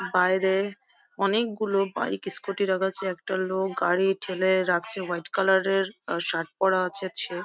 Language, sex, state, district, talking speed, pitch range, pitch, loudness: Bengali, female, West Bengal, Jhargram, 145 wpm, 185-195 Hz, 190 Hz, -25 LUFS